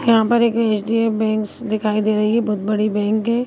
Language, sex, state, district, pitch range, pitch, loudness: Hindi, female, Bihar, Begusarai, 215-230 Hz, 220 Hz, -18 LUFS